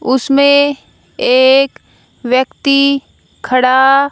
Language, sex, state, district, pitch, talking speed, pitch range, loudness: Hindi, female, Haryana, Jhajjar, 270 Hz, 60 wpm, 260-280 Hz, -11 LUFS